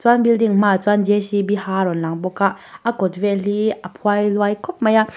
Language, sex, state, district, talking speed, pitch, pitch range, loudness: Mizo, female, Mizoram, Aizawl, 255 wpm, 205 Hz, 195-215 Hz, -18 LUFS